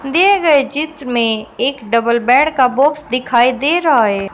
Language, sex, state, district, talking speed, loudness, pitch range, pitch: Hindi, female, Uttar Pradesh, Shamli, 180 wpm, -14 LUFS, 235-300 Hz, 255 Hz